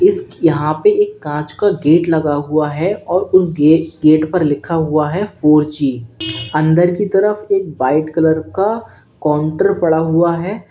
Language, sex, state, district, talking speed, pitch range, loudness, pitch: Hindi, male, Uttar Pradesh, Lalitpur, 175 wpm, 150-190 Hz, -15 LUFS, 160 Hz